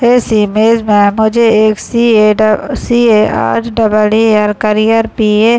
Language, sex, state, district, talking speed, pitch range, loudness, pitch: Hindi, male, Bihar, Muzaffarpur, 160 wpm, 210-230 Hz, -10 LUFS, 220 Hz